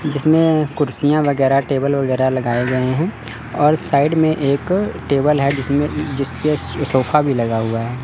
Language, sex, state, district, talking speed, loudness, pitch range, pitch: Hindi, male, Chandigarh, Chandigarh, 170 wpm, -17 LUFS, 130-150 Hz, 140 Hz